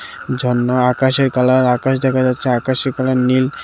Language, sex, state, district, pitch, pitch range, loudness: Bengali, male, Tripura, West Tripura, 130 Hz, 125-130 Hz, -15 LUFS